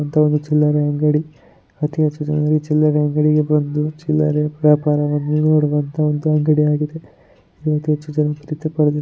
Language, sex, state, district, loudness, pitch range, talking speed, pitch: Kannada, female, Karnataka, Chamarajanagar, -18 LUFS, 150-155 Hz, 95 wpm, 150 Hz